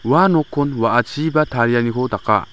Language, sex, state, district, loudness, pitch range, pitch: Garo, male, Meghalaya, West Garo Hills, -17 LUFS, 115-150 Hz, 125 Hz